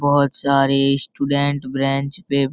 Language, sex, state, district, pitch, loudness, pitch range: Hindi, male, Bihar, Araria, 140 Hz, -17 LUFS, 135-140 Hz